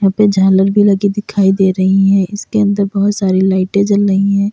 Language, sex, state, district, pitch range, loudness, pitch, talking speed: Hindi, female, Uttar Pradesh, Lalitpur, 190-205 Hz, -12 LUFS, 200 Hz, 225 wpm